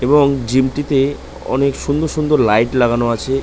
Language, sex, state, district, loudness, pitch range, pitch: Bengali, male, West Bengal, North 24 Parganas, -16 LUFS, 125-145 Hz, 135 Hz